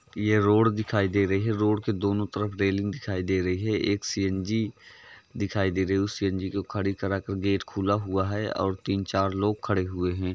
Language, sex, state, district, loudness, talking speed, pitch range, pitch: Hindi, male, Uttar Pradesh, Varanasi, -27 LUFS, 230 wpm, 95-105 Hz, 100 Hz